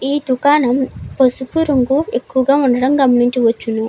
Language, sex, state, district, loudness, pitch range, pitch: Telugu, female, Andhra Pradesh, Anantapur, -15 LUFS, 245-280 Hz, 260 Hz